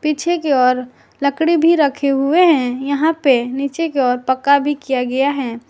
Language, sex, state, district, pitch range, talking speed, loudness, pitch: Hindi, female, Jharkhand, Garhwa, 260-305 Hz, 190 wpm, -16 LUFS, 280 Hz